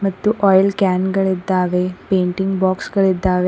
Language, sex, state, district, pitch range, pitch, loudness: Kannada, female, Karnataka, Koppal, 185-195 Hz, 190 Hz, -17 LUFS